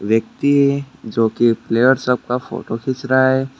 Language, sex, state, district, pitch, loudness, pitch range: Hindi, male, West Bengal, Alipurduar, 130 Hz, -17 LUFS, 115-135 Hz